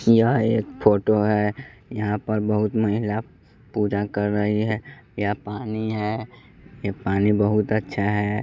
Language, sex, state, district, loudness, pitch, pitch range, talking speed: Hindi, male, Bihar, West Champaran, -23 LUFS, 105 Hz, 105-110 Hz, 140 wpm